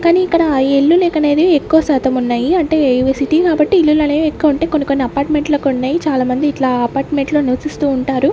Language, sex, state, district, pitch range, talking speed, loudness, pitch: Telugu, female, Andhra Pradesh, Sri Satya Sai, 270-315 Hz, 195 wpm, -14 LUFS, 290 Hz